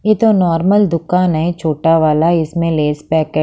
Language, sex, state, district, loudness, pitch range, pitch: Hindi, female, Haryana, Charkhi Dadri, -14 LUFS, 155-180 Hz, 165 Hz